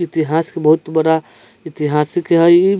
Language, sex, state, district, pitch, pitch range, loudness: Bajjika, male, Bihar, Vaishali, 160 Hz, 155-170 Hz, -15 LUFS